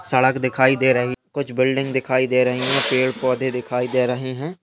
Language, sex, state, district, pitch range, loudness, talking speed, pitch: Hindi, male, Bihar, Jahanabad, 125-135 Hz, -19 LUFS, 210 wpm, 130 Hz